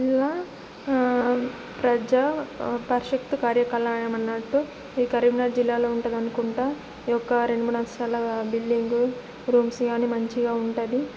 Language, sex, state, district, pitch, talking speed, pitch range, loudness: Telugu, female, Telangana, Nalgonda, 240 Hz, 120 wpm, 235-250 Hz, -25 LUFS